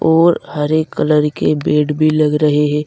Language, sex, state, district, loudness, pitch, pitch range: Hindi, male, Uttar Pradesh, Saharanpur, -14 LUFS, 150 Hz, 150-155 Hz